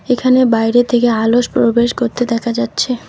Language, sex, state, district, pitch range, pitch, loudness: Bengali, female, West Bengal, Alipurduar, 230-245 Hz, 240 Hz, -14 LUFS